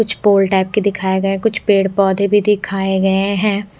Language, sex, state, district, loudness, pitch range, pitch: Hindi, female, Odisha, Khordha, -15 LUFS, 195-205 Hz, 195 Hz